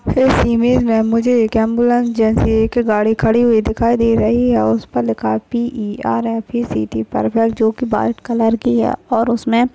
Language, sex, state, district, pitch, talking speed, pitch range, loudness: Hindi, female, Maharashtra, Chandrapur, 230 Hz, 180 wpm, 220-240 Hz, -15 LUFS